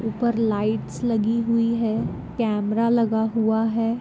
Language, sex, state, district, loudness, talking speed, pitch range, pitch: Hindi, female, Goa, North and South Goa, -23 LUFS, 135 wpm, 220-230 Hz, 225 Hz